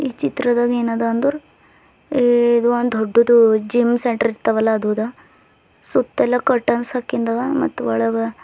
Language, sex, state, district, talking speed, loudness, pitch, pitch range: Kannada, female, Karnataka, Bidar, 115 wpm, -18 LUFS, 240 Hz, 225-245 Hz